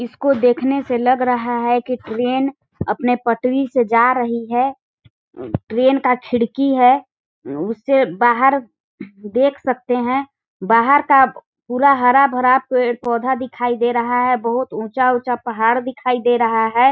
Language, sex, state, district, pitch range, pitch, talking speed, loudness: Hindi, female, Chhattisgarh, Balrampur, 240-265 Hz, 250 Hz, 155 wpm, -17 LUFS